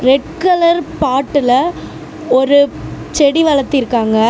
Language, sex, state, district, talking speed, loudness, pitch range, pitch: Tamil, female, Tamil Nadu, Namakkal, 85 wpm, -13 LUFS, 255-315 Hz, 280 Hz